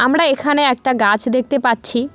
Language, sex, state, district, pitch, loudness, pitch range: Bengali, female, West Bengal, Cooch Behar, 255 Hz, -15 LUFS, 240-280 Hz